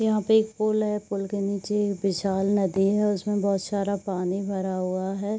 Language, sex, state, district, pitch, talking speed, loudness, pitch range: Hindi, female, Bihar, Saharsa, 200 Hz, 210 wpm, -25 LUFS, 195-210 Hz